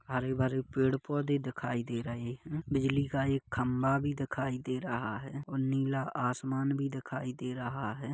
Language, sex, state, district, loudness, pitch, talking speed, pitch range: Hindi, male, Chhattisgarh, Kabirdham, -34 LUFS, 130 Hz, 185 wpm, 125-135 Hz